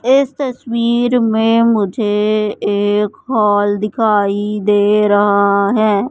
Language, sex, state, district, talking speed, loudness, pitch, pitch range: Hindi, male, Madhya Pradesh, Katni, 100 wpm, -14 LUFS, 210 Hz, 205-230 Hz